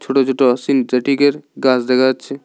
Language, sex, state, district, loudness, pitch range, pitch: Bengali, male, Tripura, South Tripura, -15 LUFS, 130-140 Hz, 130 Hz